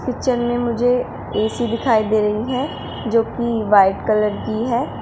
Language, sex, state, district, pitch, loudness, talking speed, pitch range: Hindi, female, Uttar Pradesh, Shamli, 230 Hz, -19 LUFS, 165 wpm, 215-240 Hz